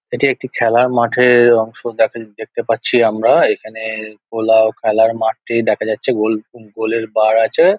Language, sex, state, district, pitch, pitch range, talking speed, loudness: Bengali, male, West Bengal, Jhargram, 110 Hz, 110-115 Hz, 155 wpm, -15 LUFS